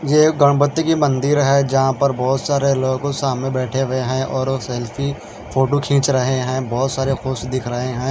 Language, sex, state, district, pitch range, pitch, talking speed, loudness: Hindi, male, Haryana, Charkhi Dadri, 130-140 Hz, 135 Hz, 200 wpm, -18 LUFS